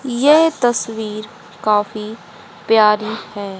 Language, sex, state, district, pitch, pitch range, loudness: Hindi, female, Haryana, Rohtak, 215 Hz, 210-240 Hz, -16 LUFS